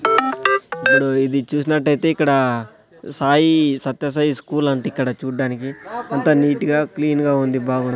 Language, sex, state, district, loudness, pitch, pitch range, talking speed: Telugu, male, Andhra Pradesh, Sri Satya Sai, -18 LUFS, 145 Hz, 135-150 Hz, 135 wpm